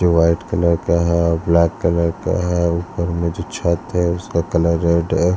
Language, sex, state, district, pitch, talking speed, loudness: Hindi, male, Bihar, Patna, 85 Hz, 210 wpm, -18 LUFS